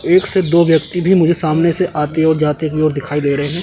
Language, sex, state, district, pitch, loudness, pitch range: Hindi, male, Chandigarh, Chandigarh, 160 Hz, -14 LUFS, 150-175 Hz